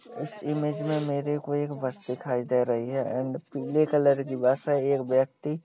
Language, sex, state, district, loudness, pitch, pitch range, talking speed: Hindi, male, Uttar Pradesh, Hamirpur, -27 LUFS, 140 Hz, 130-150 Hz, 190 wpm